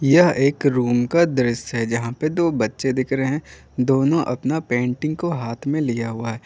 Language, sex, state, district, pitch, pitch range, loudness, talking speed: Hindi, male, Jharkhand, Garhwa, 130 Hz, 120-155 Hz, -21 LUFS, 205 wpm